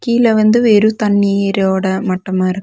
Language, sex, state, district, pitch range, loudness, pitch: Tamil, female, Tamil Nadu, Nilgiris, 190-220 Hz, -13 LUFS, 200 Hz